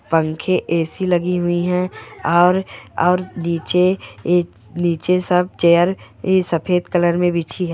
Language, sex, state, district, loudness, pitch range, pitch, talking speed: Hindi, male, Goa, North and South Goa, -18 LUFS, 170-180 Hz, 175 Hz, 115 wpm